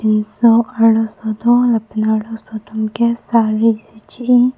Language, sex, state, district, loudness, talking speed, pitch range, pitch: Karbi, female, Assam, Karbi Anglong, -15 LUFS, 145 wpm, 220-235 Hz, 225 Hz